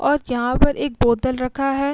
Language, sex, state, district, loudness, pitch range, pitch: Hindi, female, Uttar Pradesh, Muzaffarnagar, -20 LUFS, 255-285 Hz, 270 Hz